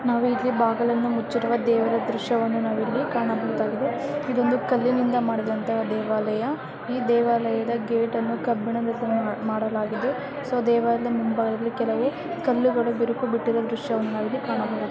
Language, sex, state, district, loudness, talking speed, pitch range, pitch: Kannada, female, Karnataka, Bellary, -24 LUFS, 115 wpm, 225-245 Hz, 235 Hz